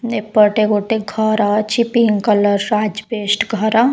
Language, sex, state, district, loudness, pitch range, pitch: Odia, female, Odisha, Khordha, -16 LUFS, 210-225 Hz, 215 Hz